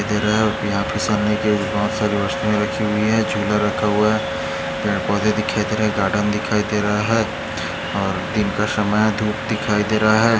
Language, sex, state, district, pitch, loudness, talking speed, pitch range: Hindi, male, Maharashtra, Dhule, 105 Hz, -19 LUFS, 215 wpm, 105-110 Hz